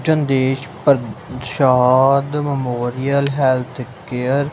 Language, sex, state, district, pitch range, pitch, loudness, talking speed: Punjabi, male, Punjab, Kapurthala, 125-140 Hz, 135 Hz, -17 LUFS, 80 wpm